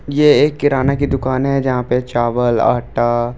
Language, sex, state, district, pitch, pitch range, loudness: Hindi, male, Delhi, New Delhi, 130 Hz, 120-140 Hz, -15 LUFS